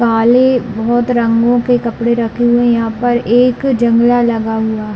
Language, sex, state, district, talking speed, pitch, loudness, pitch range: Hindi, female, Chhattisgarh, Bilaspur, 180 wpm, 235 Hz, -13 LUFS, 230-245 Hz